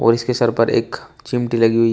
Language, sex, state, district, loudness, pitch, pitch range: Hindi, male, Uttar Pradesh, Shamli, -18 LUFS, 115 Hz, 115-120 Hz